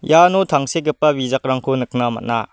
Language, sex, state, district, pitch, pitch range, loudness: Garo, male, Meghalaya, West Garo Hills, 135 Hz, 125-155 Hz, -17 LUFS